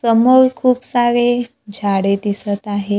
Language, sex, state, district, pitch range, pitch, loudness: Marathi, female, Maharashtra, Gondia, 205-245 Hz, 230 Hz, -16 LUFS